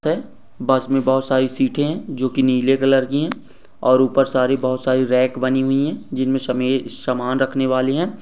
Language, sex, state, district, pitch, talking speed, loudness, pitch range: Hindi, male, Bihar, Lakhisarai, 130 Hz, 205 wpm, -19 LUFS, 130-135 Hz